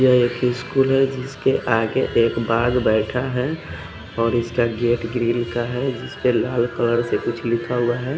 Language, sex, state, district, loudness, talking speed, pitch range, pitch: Hindi, male, Odisha, Khordha, -21 LUFS, 175 wpm, 115-125 Hz, 120 Hz